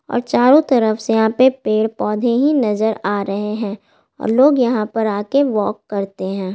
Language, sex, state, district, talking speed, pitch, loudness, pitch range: Hindi, female, Bihar, Gaya, 190 wpm, 220 Hz, -17 LUFS, 210-245 Hz